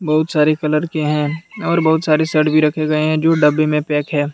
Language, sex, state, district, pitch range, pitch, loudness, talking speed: Hindi, male, Jharkhand, Deoghar, 150-160 Hz, 155 Hz, -16 LUFS, 250 wpm